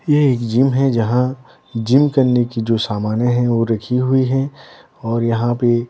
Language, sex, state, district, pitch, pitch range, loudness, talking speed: Hindi, male, Bihar, Patna, 120 Hz, 115-130 Hz, -17 LUFS, 185 wpm